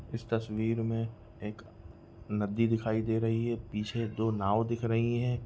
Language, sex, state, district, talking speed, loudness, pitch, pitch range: Hindi, male, Bihar, Jahanabad, 155 wpm, -32 LUFS, 115 Hz, 105-115 Hz